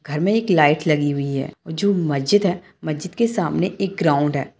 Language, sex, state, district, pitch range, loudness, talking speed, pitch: Hindi, male, Bihar, Darbhanga, 145-195 Hz, -20 LUFS, 220 wpm, 165 Hz